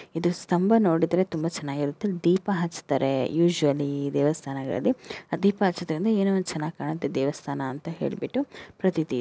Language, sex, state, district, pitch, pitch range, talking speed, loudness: Kannada, female, Karnataka, Dakshina Kannada, 165 Hz, 145-185 Hz, 130 wpm, -26 LUFS